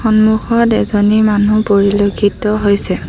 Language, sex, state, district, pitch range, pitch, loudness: Assamese, female, Assam, Sonitpur, 205-220 Hz, 210 Hz, -12 LUFS